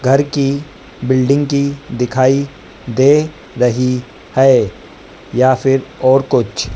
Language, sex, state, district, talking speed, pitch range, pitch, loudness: Hindi, female, Madhya Pradesh, Dhar, 105 wpm, 125-140 Hz, 130 Hz, -14 LUFS